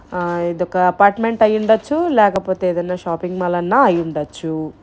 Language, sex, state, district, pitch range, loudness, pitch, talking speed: Telugu, female, Andhra Pradesh, Guntur, 175-215 Hz, -17 LUFS, 180 Hz, 150 wpm